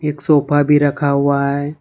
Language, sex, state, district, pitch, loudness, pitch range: Hindi, male, Jharkhand, Ranchi, 145 Hz, -15 LUFS, 140-150 Hz